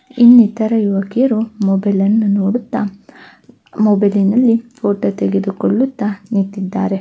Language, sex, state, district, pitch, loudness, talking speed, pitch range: Kannada, female, Karnataka, Belgaum, 210 Hz, -15 LUFS, 95 wpm, 200-235 Hz